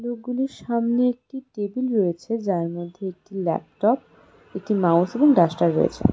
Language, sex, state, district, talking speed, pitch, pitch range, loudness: Bengali, female, West Bengal, Darjeeling, 135 wpm, 220 Hz, 190-250 Hz, -22 LUFS